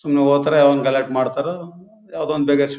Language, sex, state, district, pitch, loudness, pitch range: Kannada, male, Karnataka, Bellary, 145 Hz, -18 LUFS, 140-165 Hz